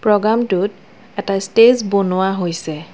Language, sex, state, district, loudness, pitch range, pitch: Assamese, female, Assam, Kamrup Metropolitan, -16 LUFS, 185-215 Hz, 200 Hz